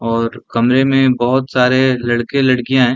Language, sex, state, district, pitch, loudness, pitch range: Hindi, male, Bihar, Sitamarhi, 125 Hz, -14 LUFS, 120-130 Hz